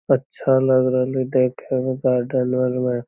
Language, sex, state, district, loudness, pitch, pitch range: Magahi, male, Bihar, Lakhisarai, -20 LUFS, 130 Hz, 125-130 Hz